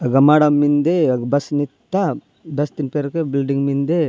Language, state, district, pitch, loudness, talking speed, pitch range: Gondi, Chhattisgarh, Sukma, 145 Hz, -18 LUFS, 160 wpm, 140-155 Hz